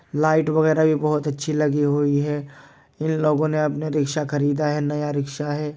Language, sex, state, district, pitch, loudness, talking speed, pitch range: Hindi, male, Uttar Pradesh, Jyotiba Phule Nagar, 150 Hz, -21 LUFS, 185 wpm, 145-155 Hz